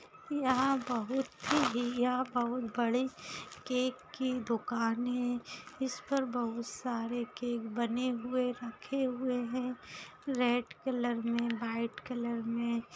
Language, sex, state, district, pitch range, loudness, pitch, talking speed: Hindi, female, Maharashtra, Pune, 235-255 Hz, -34 LUFS, 245 Hz, 125 wpm